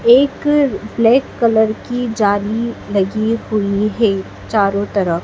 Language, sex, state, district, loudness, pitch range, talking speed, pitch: Hindi, female, Madhya Pradesh, Dhar, -16 LUFS, 200-235 Hz, 115 wpm, 215 Hz